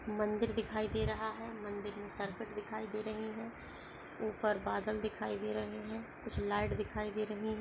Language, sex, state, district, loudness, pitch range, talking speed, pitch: Hindi, female, Maharashtra, Aurangabad, -39 LUFS, 200-220 Hz, 180 wpm, 215 Hz